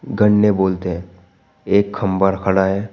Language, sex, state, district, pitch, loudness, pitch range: Hindi, male, Uttar Pradesh, Shamli, 95 Hz, -17 LUFS, 90-100 Hz